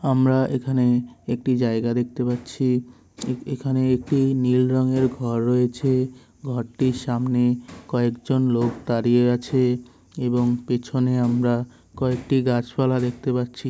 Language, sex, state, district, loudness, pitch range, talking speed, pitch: Bengali, male, West Bengal, Kolkata, -22 LUFS, 120-130 Hz, 120 wpm, 125 Hz